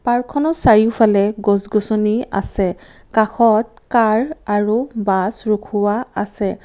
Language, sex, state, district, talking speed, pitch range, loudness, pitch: Assamese, female, Assam, Kamrup Metropolitan, 100 wpm, 205-230 Hz, -17 LUFS, 215 Hz